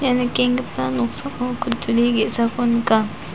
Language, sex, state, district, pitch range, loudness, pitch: Garo, female, Meghalaya, South Garo Hills, 220-245 Hz, -20 LUFS, 235 Hz